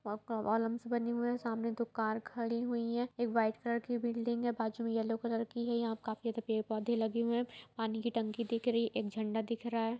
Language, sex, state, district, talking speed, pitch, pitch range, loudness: Hindi, female, Bihar, Saran, 230 wpm, 230 Hz, 225-235 Hz, -36 LUFS